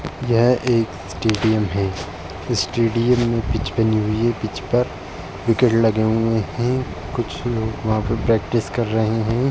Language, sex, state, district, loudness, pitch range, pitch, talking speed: Hindi, male, Uttar Pradesh, Jalaun, -20 LUFS, 110-120 Hz, 110 Hz, 150 wpm